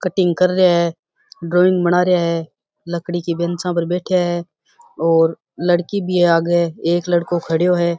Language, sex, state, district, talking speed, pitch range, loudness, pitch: Rajasthani, female, Rajasthan, Churu, 165 wpm, 170-180 Hz, -17 LUFS, 175 Hz